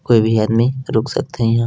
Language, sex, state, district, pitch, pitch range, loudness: Hindi, male, Chhattisgarh, Balrampur, 115 Hz, 110-130 Hz, -17 LUFS